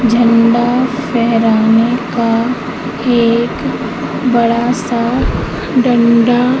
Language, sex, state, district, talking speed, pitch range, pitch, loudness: Hindi, female, Madhya Pradesh, Katni, 65 wpm, 230-245 Hz, 235 Hz, -13 LUFS